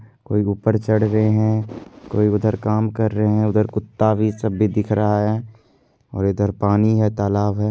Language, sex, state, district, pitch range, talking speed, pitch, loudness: Hindi, male, Bihar, Purnia, 105-110 Hz, 195 wpm, 105 Hz, -19 LUFS